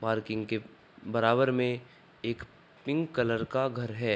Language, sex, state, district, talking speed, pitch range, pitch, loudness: Hindi, male, Uttar Pradesh, Gorakhpur, 145 wpm, 110-130 Hz, 120 Hz, -31 LUFS